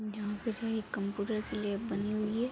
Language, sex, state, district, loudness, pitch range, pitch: Hindi, female, Bihar, East Champaran, -35 LUFS, 205-220 Hz, 215 Hz